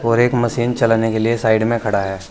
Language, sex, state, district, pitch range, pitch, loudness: Hindi, male, Uttar Pradesh, Saharanpur, 110-120 Hz, 115 Hz, -17 LUFS